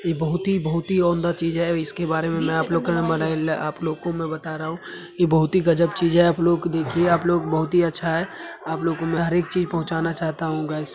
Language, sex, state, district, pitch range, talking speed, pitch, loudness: Hindi, male, Uttar Pradesh, Hamirpur, 160-170 Hz, 250 wpm, 165 Hz, -22 LUFS